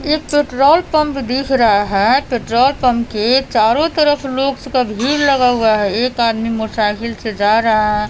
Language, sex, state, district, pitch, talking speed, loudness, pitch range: Hindi, female, Bihar, West Champaran, 245 Hz, 180 wpm, -15 LUFS, 220-275 Hz